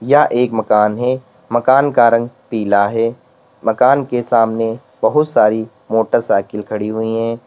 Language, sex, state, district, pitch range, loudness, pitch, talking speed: Hindi, male, Uttar Pradesh, Lalitpur, 110-125 Hz, -15 LUFS, 115 Hz, 145 wpm